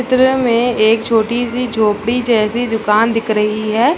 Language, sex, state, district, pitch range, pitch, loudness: Hindi, female, Bihar, Saharsa, 215-245 Hz, 230 Hz, -14 LUFS